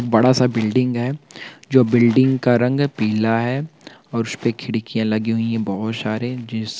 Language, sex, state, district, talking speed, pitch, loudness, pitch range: Hindi, male, Bihar, Purnia, 185 wpm, 120 Hz, -19 LUFS, 110-130 Hz